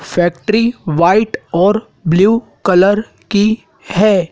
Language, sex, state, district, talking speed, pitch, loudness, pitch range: Hindi, male, Madhya Pradesh, Dhar, 95 wpm, 200 Hz, -14 LUFS, 175-215 Hz